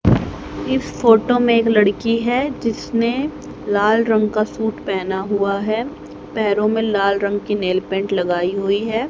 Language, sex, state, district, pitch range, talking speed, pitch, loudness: Hindi, female, Haryana, Charkhi Dadri, 200-230 Hz, 160 wpm, 215 Hz, -18 LUFS